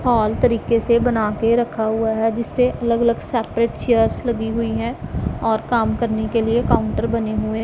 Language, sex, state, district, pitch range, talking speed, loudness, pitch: Hindi, female, Punjab, Pathankot, 220-235 Hz, 195 wpm, -19 LUFS, 230 Hz